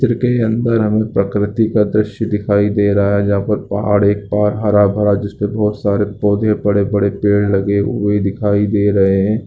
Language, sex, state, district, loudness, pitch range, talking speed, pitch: Hindi, male, Bihar, Lakhisarai, -15 LUFS, 100-105 Hz, 185 wpm, 105 Hz